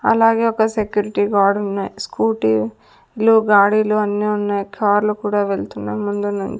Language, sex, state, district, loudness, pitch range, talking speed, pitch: Telugu, female, Andhra Pradesh, Sri Satya Sai, -18 LUFS, 200-215 Hz, 125 wpm, 205 Hz